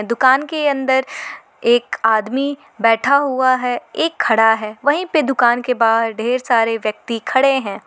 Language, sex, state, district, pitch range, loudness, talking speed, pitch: Hindi, female, Jharkhand, Garhwa, 225-275 Hz, -16 LUFS, 160 wpm, 245 Hz